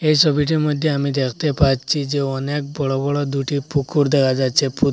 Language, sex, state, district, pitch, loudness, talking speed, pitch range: Bengali, male, Assam, Hailakandi, 140 Hz, -19 LUFS, 180 wpm, 135-150 Hz